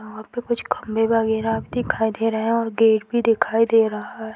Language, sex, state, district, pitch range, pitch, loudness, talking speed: Hindi, female, Uttar Pradesh, Deoria, 220-230 Hz, 225 Hz, -21 LUFS, 220 wpm